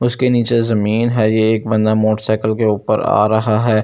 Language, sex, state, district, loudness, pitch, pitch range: Hindi, male, Delhi, New Delhi, -15 LUFS, 110 Hz, 110-115 Hz